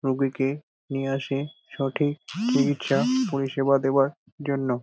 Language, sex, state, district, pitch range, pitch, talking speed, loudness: Bengali, male, West Bengal, Dakshin Dinajpur, 135-150 Hz, 140 Hz, 100 wpm, -25 LUFS